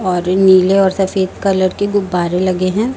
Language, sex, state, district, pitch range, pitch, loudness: Hindi, female, Chhattisgarh, Raipur, 185-195 Hz, 190 Hz, -14 LUFS